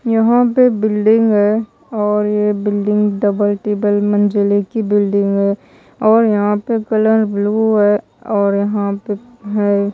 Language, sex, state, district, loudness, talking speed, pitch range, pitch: Hindi, female, Odisha, Malkangiri, -15 LUFS, 140 wpm, 205-220 Hz, 210 Hz